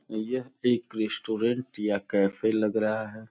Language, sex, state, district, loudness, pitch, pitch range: Hindi, male, Uttar Pradesh, Gorakhpur, -28 LUFS, 110 Hz, 110-120 Hz